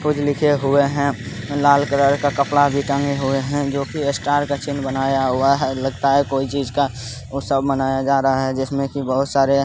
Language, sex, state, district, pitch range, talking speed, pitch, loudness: Hindi, male, Bihar, Supaul, 135-140 Hz, 220 wpm, 140 Hz, -19 LUFS